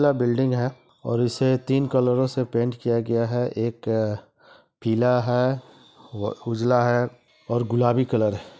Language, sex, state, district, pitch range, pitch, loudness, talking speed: Hindi, male, Bihar, East Champaran, 115-130 Hz, 120 Hz, -23 LUFS, 160 wpm